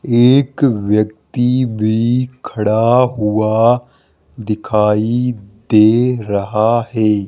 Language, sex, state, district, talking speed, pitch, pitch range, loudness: Hindi, male, Rajasthan, Jaipur, 75 wpm, 115 Hz, 105-125 Hz, -15 LUFS